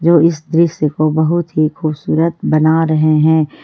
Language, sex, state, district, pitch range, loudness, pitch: Hindi, female, Jharkhand, Ranchi, 155-165 Hz, -14 LUFS, 155 Hz